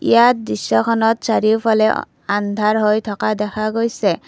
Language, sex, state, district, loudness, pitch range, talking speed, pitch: Assamese, female, Assam, Kamrup Metropolitan, -17 LUFS, 210-225 Hz, 110 wpm, 215 Hz